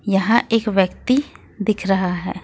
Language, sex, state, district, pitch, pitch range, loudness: Hindi, female, Jharkhand, Ranchi, 210 Hz, 195-225 Hz, -19 LUFS